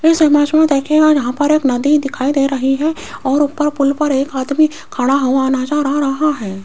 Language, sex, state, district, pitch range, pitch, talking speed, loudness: Hindi, female, Rajasthan, Jaipur, 270-300 Hz, 285 Hz, 215 wpm, -15 LUFS